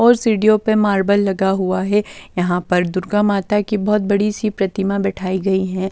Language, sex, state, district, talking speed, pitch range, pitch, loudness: Hindi, female, Delhi, New Delhi, 195 wpm, 190-210 Hz, 200 Hz, -17 LUFS